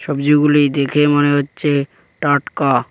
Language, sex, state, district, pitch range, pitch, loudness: Bengali, male, West Bengal, Cooch Behar, 140-150 Hz, 145 Hz, -15 LUFS